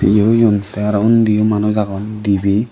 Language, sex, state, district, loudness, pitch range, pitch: Chakma, male, Tripura, Dhalai, -15 LUFS, 100-110 Hz, 105 Hz